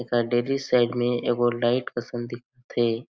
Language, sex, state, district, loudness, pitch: Chhattisgarhi, male, Chhattisgarh, Jashpur, -25 LUFS, 120 Hz